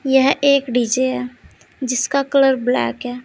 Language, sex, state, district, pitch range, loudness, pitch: Hindi, female, Uttar Pradesh, Saharanpur, 250-270 Hz, -17 LUFS, 260 Hz